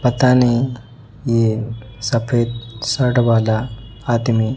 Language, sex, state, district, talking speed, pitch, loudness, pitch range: Hindi, male, Chhattisgarh, Raipur, 90 wpm, 115 Hz, -18 LUFS, 115-120 Hz